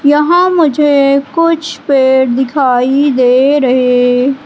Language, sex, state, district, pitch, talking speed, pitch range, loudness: Hindi, female, Madhya Pradesh, Katni, 275 Hz, 95 wpm, 255-295 Hz, -10 LUFS